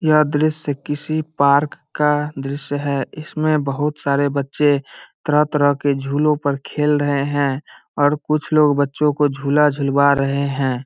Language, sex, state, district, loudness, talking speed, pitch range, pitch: Hindi, male, Bihar, Samastipur, -18 LUFS, 145 wpm, 140-150 Hz, 145 Hz